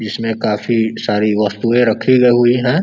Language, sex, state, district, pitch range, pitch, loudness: Hindi, male, Uttar Pradesh, Ghazipur, 105-120 Hz, 115 Hz, -14 LUFS